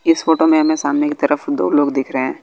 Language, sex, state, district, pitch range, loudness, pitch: Hindi, male, Bihar, West Champaran, 145-160 Hz, -16 LUFS, 150 Hz